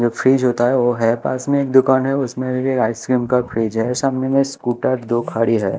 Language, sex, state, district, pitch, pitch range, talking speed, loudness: Hindi, male, Chhattisgarh, Raipur, 125 Hz, 120-130 Hz, 240 wpm, -18 LUFS